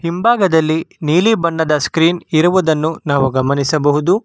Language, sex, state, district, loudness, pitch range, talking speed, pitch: Kannada, male, Karnataka, Bangalore, -15 LUFS, 150-175 Hz, 100 wpm, 160 Hz